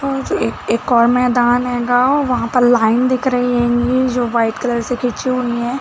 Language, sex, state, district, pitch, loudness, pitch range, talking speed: Hindi, female, Chhattisgarh, Rajnandgaon, 245 Hz, -15 LUFS, 240-255 Hz, 205 wpm